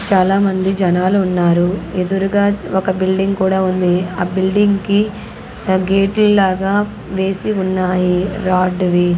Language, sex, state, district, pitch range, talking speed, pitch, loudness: Telugu, female, Andhra Pradesh, Sri Satya Sai, 185-195 Hz, 110 wpm, 190 Hz, -15 LUFS